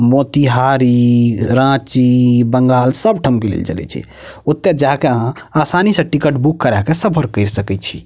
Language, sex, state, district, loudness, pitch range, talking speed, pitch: Maithili, male, Bihar, Purnia, -13 LUFS, 120-150 Hz, 170 wpm, 130 Hz